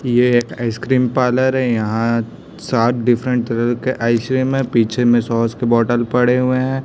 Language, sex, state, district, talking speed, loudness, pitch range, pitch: Hindi, male, Chhattisgarh, Raipur, 175 wpm, -17 LUFS, 115-125 Hz, 120 Hz